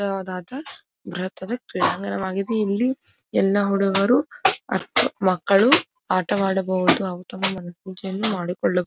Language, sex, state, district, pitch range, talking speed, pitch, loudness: Kannada, female, Karnataka, Dharwad, 185-215 Hz, 90 wpm, 195 Hz, -22 LUFS